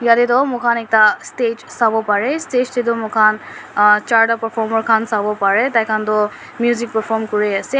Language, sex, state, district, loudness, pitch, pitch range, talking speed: Nagamese, female, Nagaland, Dimapur, -16 LUFS, 225 Hz, 215-235 Hz, 185 wpm